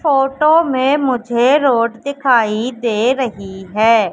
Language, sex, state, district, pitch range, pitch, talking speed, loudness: Hindi, female, Madhya Pradesh, Katni, 225-275 Hz, 250 Hz, 115 wpm, -15 LUFS